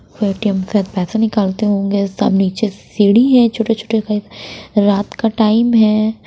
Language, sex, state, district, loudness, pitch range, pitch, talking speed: Hindi, female, Bihar, Patna, -15 LUFS, 200-220 Hz, 210 Hz, 145 wpm